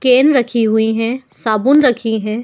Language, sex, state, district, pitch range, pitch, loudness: Hindi, female, Uttar Pradesh, Muzaffarnagar, 220-260 Hz, 230 Hz, -14 LUFS